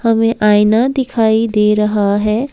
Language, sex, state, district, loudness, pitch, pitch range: Hindi, female, Assam, Kamrup Metropolitan, -13 LUFS, 220 Hz, 210-230 Hz